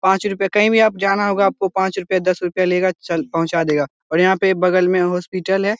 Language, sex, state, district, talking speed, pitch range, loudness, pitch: Hindi, male, Bihar, Lakhisarai, 240 wpm, 180-195 Hz, -17 LUFS, 185 Hz